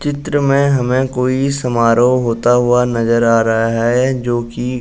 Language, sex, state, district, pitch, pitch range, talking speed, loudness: Hindi, male, Uttar Pradesh, Jalaun, 125 Hz, 115-130 Hz, 175 wpm, -14 LUFS